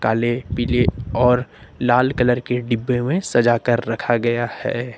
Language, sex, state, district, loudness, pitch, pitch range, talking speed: Hindi, male, Uttar Pradesh, Lucknow, -19 LUFS, 120 Hz, 120-125 Hz, 145 wpm